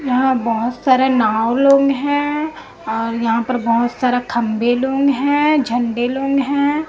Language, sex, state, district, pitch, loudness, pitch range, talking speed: Hindi, female, Chhattisgarh, Raipur, 255 Hz, -17 LUFS, 235-275 Hz, 150 wpm